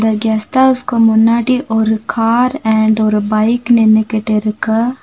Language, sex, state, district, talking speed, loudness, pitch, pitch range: Tamil, female, Tamil Nadu, Nilgiris, 130 wpm, -13 LUFS, 220 Hz, 220-240 Hz